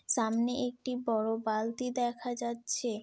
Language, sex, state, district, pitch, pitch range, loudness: Bengali, female, West Bengal, Dakshin Dinajpur, 235 Hz, 225-250 Hz, -33 LUFS